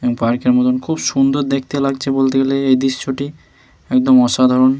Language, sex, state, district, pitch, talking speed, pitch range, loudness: Bengali, male, West Bengal, Malda, 135 Hz, 175 wpm, 130-135 Hz, -15 LUFS